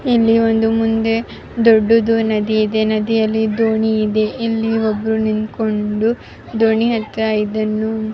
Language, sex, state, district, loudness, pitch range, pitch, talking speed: Kannada, female, Karnataka, Raichur, -16 LUFS, 215-225 Hz, 220 Hz, 105 wpm